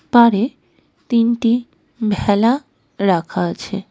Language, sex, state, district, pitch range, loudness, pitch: Bengali, female, West Bengal, Darjeeling, 200-235 Hz, -17 LUFS, 225 Hz